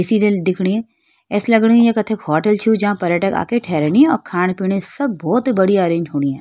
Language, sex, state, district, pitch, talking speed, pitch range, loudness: Hindi, female, Uttarakhand, Tehri Garhwal, 205 Hz, 185 wpm, 180-230 Hz, -16 LUFS